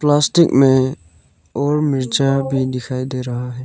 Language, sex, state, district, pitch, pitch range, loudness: Hindi, male, Arunachal Pradesh, Lower Dibang Valley, 130 Hz, 125-140 Hz, -17 LUFS